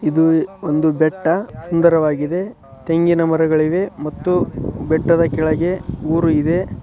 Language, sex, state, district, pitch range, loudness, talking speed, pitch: Kannada, male, Karnataka, Dharwad, 155-170 Hz, -17 LUFS, 95 wpm, 160 Hz